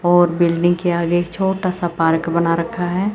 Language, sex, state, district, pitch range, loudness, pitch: Hindi, female, Chandigarh, Chandigarh, 170-180 Hz, -18 LUFS, 175 Hz